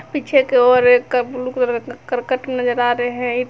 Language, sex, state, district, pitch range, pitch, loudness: Hindi, female, Jharkhand, Garhwa, 245-255 Hz, 250 Hz, -17 LUFS